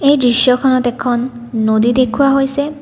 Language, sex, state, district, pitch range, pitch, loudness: Assamese, female, Assam, Kamrup Metropolitan, 240-275 Hz, 255 Hz, -13 LUFS